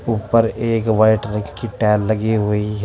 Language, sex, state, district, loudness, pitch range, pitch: Hindi, male, Uttar Pradesh, Shamli, -18 LUFS, 105-115 Hz, 110 Hz